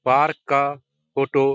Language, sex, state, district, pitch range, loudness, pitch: Hindi, male, Bihar, Jahanabad, 135-140 Hz, -21 LUFS, 135 Hz